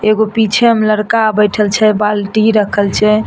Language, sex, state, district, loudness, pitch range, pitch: Maithili, female, Bihar, Samastipur, -12 LUFS, 210-220 Hz, 215 Hz